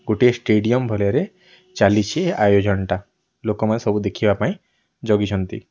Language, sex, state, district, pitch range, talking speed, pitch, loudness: Odia, male, Odisha, Nuapada, 100-125 Hz, 125 wpm, 105 Hz, -20 LUFS